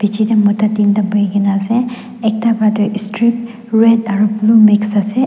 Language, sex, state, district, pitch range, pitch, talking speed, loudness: Nagamese, female, Nagaland, Dimapur, 210-230 Hz, 215 Hz, 170 wpm, -13 LUFS